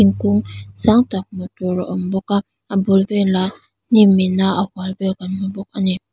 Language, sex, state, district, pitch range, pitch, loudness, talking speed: Mizo, female, Mizoram, Aizawl, 185-195 Hz, 190 Hz, -18 LUFS, 205 wpm